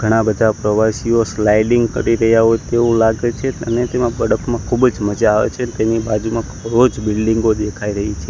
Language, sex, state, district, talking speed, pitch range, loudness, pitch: Gujarati, male, Gujarat, Gandhinagar, 165 wpm, 105-120 Hz, -16 LUFS, 115 Hz